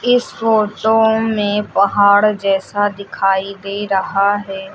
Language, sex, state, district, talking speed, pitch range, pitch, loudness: Hindi, female, Uttar Pradesh, Lucknow, 115 wpm, 195-215 Hz, 205 Hz, -15 LUFS